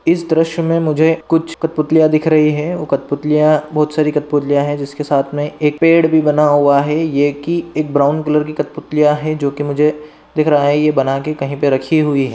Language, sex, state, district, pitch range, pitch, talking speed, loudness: Hindi, male, Maharashtra, Dhule, 145-155 Hz, 150 Hz, 225 wpm, -15 LUFS